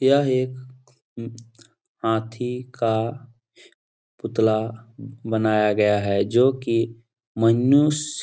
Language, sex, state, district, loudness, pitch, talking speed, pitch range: Hindi, male, Bihar, Jahanabad, -22 LUFS, 115 Hz, 95 wpm, 110-130 Hz